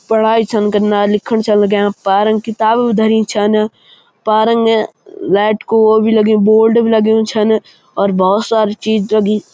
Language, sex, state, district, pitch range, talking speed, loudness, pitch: Garhwali, male, Uttarakhand, Uttarkashi, 210-220 Hz, 155 wpm, -13 LUFS, 215 Hz